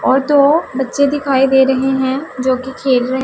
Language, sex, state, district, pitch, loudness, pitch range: Hindi, female, Punjab, Pathankot, 265 Hz, -14 LUFS, 260-280 Hz